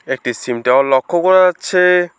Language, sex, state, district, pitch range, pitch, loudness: Bengali, male, West Bengal, Alipurduar, 130-180 Hz, 170 Hz, -14 LUFS